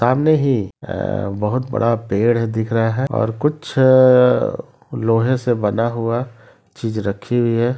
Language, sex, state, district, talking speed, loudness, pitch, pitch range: Hindi, male, Bihar, East Champaran, 145 wpm, -17 LUFS, 115 Hz, 115-130 Hz